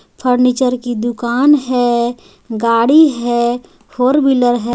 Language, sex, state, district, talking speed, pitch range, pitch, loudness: Hindi, female, Jharkhand, Garhwa, 115 wpm, 235-255 Hz, 245 Hz, -14 LUFS